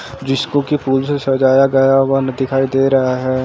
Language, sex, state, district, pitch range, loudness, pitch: Hindi, male, Uttar Pradesh, Jalaun, 130-135 Hz, -15 LUFS, 135 Hz